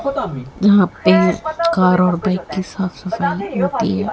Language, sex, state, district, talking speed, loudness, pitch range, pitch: Hindi, female, Haryana, Jhajjar, 145 wpm, -17 LUFS, 170-205 Hz, 185 Hz